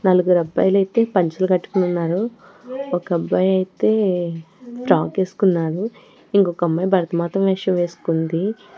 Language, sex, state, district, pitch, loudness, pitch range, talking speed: Telugu, female, Telangana, Hyderabad, 185 Hz, -19 LUFS, 175-200 Hz, 110 wpm